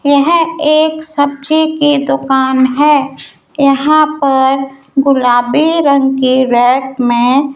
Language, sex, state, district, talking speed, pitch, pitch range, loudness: Hindi, female, Rajasthan, Jaipur, 110 wpm, 275 Hz, 265-300 Hz, -11 LUFS